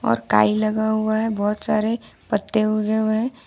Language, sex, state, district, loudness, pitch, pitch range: Hindi, female, Jharkhand, Ranchi, -21 LUFS, 215 Hz, 210-220 Hz